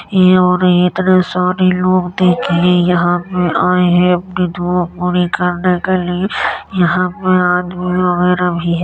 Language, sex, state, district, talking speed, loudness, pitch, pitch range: Hindi, male, Uttar Pradesh, Jyotiba Phule Nagar, 165 wpm, -13 LUFS, 180 Hz, 175-180 Hz